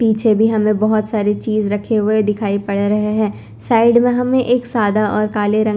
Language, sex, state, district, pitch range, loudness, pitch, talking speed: Hindi, female, Chandigarh, Chandigarh, 210-220 Hz, -16 LUFS, 215 Hz, 210 wpm